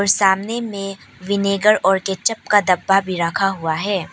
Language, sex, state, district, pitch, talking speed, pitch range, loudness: Hindi, female, Arunachal Pradesh, Papum Pare, 195 Hz, 160 wpm, 185-200 Hz, -18 LUFS